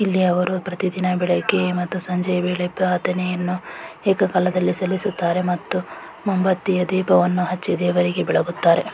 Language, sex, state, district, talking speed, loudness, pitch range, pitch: Kannada, female, Karnataka, Raichur, 115 wpm, -21 LUFS, 180-185 Hz, 180 Hz